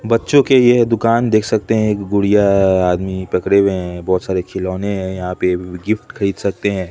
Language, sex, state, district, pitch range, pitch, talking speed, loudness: Hindi, male, Odisha, Khordha, 95-110 Hz, 100 Hz, 210 wpm, -16 LUFS